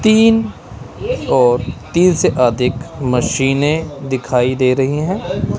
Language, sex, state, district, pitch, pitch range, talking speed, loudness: Hindi, male, Punjab, Kapurthala, 135 Hz, 125-165 Hz, 105 wpm, -15 LUFS